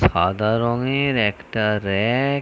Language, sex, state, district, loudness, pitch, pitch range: Bengali, male, West Bengal, North 24 Parganas, -20 LUFS, 115 Hz, 100-125 Hz